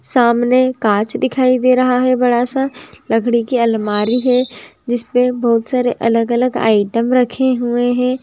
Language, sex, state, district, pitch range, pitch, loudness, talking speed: Hindi, female, Andhra Pradesh, Chittoor, 230-255 Hz, 245 Hz, -15 LUFS, 155 wpm